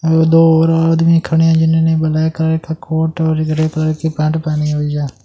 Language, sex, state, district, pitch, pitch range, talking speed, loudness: Hindi, male, Delhi, New Delhi, 160 Hz, 155-160 Hz, 215 wpm, -14 LUFS